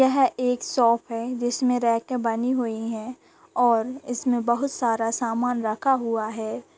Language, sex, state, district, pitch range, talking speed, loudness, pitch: Hindi, female, Chhattisgarh, Raigarh, 230-250 Hz, 150 wpm, -24 LUFS, 240 Hz